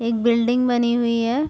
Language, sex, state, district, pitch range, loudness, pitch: Hindi, female, Chhattisgarh, Raigarh, 230-245 Hz, -19 LUFS, 235 Hz